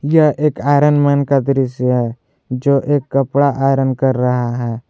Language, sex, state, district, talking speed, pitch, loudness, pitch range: Hindi, male, Jharkhand, Garhwa, 170 wpm, 135 Hz, -15 LUFS, 125-145 Hz